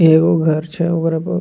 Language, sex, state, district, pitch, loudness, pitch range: Bajjika, male, Bihar, Vaishali, 165 Hz, -16 LUFS, 160-165 Hz